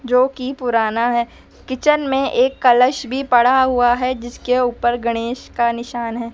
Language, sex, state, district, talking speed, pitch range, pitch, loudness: Hindi, female, Madhya Pradesh, Dhar, 160 wpm, 235-260 Hz, 245 Hz, -17 LUFS